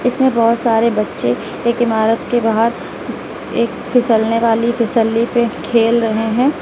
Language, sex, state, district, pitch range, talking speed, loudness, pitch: Hindi, female, Uttar Pradesh, Lalitpur, 225-235 Hz, 145 wpm, -15 LUFS, 230 Hz